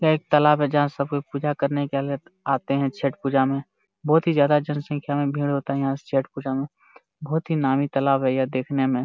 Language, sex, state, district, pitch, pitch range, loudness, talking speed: Hindi, male, Jharkhand, Jamtara, 140 Hz, 135-145 Hz, -23 LUFS, 225 wpm